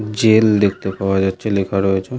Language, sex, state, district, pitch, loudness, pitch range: Bengali, male, West Bengal, Malda, 100 Hz, -16 LUFS, 95-110 Hz